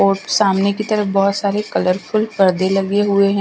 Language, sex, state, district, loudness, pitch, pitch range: Hindi, female, Punjab, Kapurthala, -16 LUFS, 200 Hz, 195-205 Hz